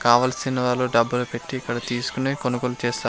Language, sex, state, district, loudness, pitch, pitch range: Telugu, male, Andhra Pradesh, Sri Satya Sai, -23 LUFS, 125 Hz, 120-130 Hz